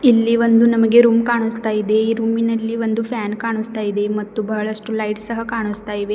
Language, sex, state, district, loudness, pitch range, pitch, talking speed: Kannada, female, Karnataka, Bidar, -18 LUFS, 215-230 Hz, 225 Hz, 185 wpm